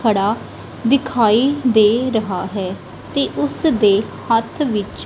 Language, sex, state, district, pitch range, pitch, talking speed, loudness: Punjabi, female, Punjab, Kapurthala, 195-245 Hz, 220 Hz, 120 wpm, -17 LUFS